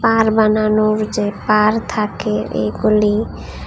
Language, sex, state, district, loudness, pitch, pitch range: Bengali, female, Tripura, West Tripura, -16 LUFS, 215 Hz, 195-215 Hz